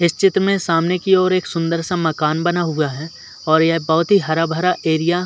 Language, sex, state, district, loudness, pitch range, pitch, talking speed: Hindi, male, Uttar Pradesh, Muzaffarnagar, -17 LUFS, 160-180 Hz, 165 Hz, 240 wpm